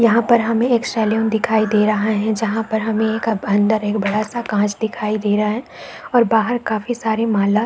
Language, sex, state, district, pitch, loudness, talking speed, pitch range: Hindi, female, Chhattisgarh, Balrampur, 220 Hz, -18 LUFS, 210 wpm, 215-230 Hz